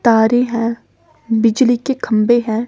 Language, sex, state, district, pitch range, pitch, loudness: Hindi, female, Himachal Pradesh, Shimla, 225-245 Hz, 230 Hz, -15 LUFS